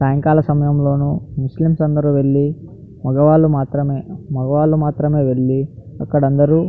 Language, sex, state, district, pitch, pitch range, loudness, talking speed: Telugu, male, Andhra Pradesh, Anantapur, 145 Hz, 135-150 Hz, -16 LUFS, 125 wpm